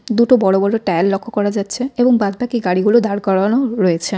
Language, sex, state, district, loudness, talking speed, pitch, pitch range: Bengali, female, West Bengal, Cooch Behar, -16 LUFS, 185 wpm, 205 Hz, 195-235 Hz